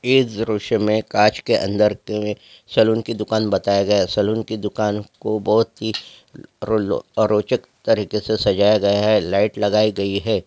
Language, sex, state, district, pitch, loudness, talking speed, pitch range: Hindi, male, Chhattisgarh, Jashpur, 105 Hz, -19 LUFS, 170 wpm, 105-110 Hz